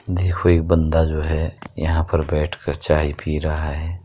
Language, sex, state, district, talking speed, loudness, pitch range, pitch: Hindi, male, Uttar Pradesh, Muzaffarnagar, 210 wpm, -21 LUFS, 75-85 Hz, 80 Hz